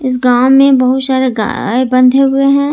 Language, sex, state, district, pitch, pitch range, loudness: Hindi, female, Jharkhand, Ranchi, 260 Hz, 255-270 Hz, -10 LUFS